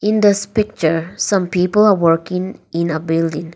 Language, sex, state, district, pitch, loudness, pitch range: English, female, Nagaland, Dimapur, 180 Hz, -17 LUFS, 165-200 Hz